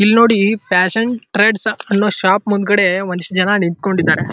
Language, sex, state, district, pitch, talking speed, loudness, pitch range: Kannada, male, Karnataka, Dharwad, 200 Hz, 110 wpm, -14 LUFS, 185-210 Hz